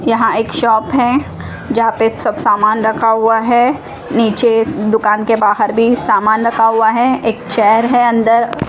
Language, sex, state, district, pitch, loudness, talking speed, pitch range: Hindi, female, Odisha, Malkangiri, 225 Hz, -13 LUFS, 165 wpm, 220-235 Hz